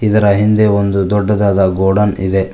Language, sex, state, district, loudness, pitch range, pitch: Kannada, male, Karnataka, Koppal, -13 LUFS, 95-105 Hz, 100 Hz